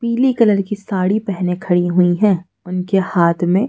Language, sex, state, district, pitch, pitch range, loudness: Hindi, female, Madhya Pradesh, Bhopal, 190 Hz, 180-210 Hz, -16 LUFS